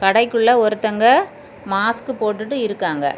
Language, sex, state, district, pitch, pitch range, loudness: Tamil, female, Tamil Nadu, Kanyakumari, 220 Hz, 205-240 Hz, -17 LUFS